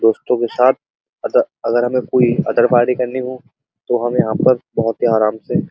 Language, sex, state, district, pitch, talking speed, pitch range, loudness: Hindi, male, Uttar Pradesh, Muzaffarnagar, 125 Hz, 210 wpm, 120-130 Hz, -16 LUFS